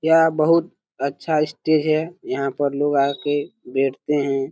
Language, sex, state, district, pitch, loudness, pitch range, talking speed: Hindi, male, Jharkhand, Jamtara, 145 Hz, -21 LUFS, 140-155 Hz, 160 wpm